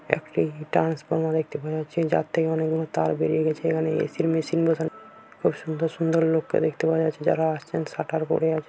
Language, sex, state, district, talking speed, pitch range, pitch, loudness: Bengali, female, West Bengal, Paschim Medinipur, 205 wpm, 155-165 Hz, 160 Hz, -25 LUFS